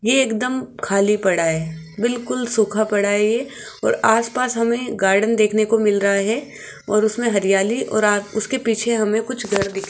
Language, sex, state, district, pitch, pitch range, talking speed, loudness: Hindi, female, Rajasthan, Jaipur, 215 Hz, 200-235 Hz, 190 wpm, -19 LUFS